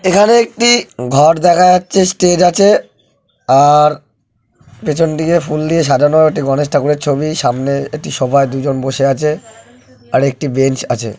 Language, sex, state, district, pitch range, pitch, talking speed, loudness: Bengali, male, West Bengal, Jalpaiguri, 135-170 Hz, 145 Hz, 145 wpm, -12 LUFS